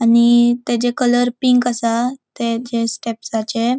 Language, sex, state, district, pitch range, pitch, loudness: Konkani, female, Goa, North and South Goa, 230-245 Hz, 240 Hz, -17 LUFS